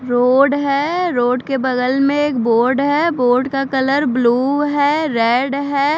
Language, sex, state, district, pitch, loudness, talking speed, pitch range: Hindi, female, Maharashtra, Mumbai Suburban, 275 Hz, -16 LUFS, 160 wpm, 250-285 Hz